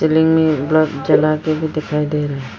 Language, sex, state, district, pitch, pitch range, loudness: Hindi, female, Arunachal Pradesh, Lower Dibang Valley, 155 Hz, 150-155 Hz, -16 LUFS